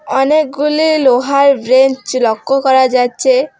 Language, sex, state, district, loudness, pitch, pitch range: Bengali, female, West Bengal, Alipurduar, -12 LUFS, 265 Hz, 255-280 Hz